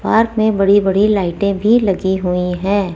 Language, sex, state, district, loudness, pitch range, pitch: Hindi, female, Rajasthan, Jaipur, -15 LUFS, 190-210 Hz, 200 Hz